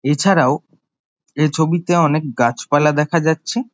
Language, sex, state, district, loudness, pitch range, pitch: Bengali, male, West Bengal, Jhargram, -17 LUFS, 145-170 Hz, 155 Hz